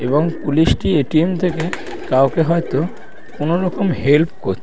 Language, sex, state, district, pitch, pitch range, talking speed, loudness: Bengali, female, West Bengal, Paschim Medinipur, 160 Hz, 145-175 Hz, 130 wpm, -17 LUFS